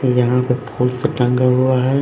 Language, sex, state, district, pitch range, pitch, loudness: Hindi, male, Haryana, Rohtak, 125-130 Hz, 125 Hz, -17 LUFS